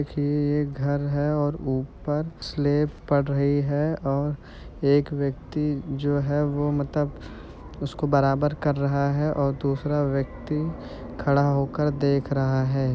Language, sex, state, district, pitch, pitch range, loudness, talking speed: Hindi, male, Uttar Pradesh, Jyotiba Phule Nagar, 145 Hz, 140-145 Hz, -25 LUFS, 145 wpm